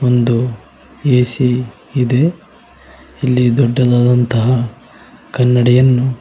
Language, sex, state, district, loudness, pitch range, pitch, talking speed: Kannada, male, Karnataka, Koppal, -14 LUFS, 120-130 Hz, 125 Hz, 60 wpm